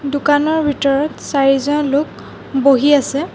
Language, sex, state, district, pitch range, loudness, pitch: Assamese, female, Assam, Sonitpur, 275-290 Hz, -15 LUFS, 285 Hz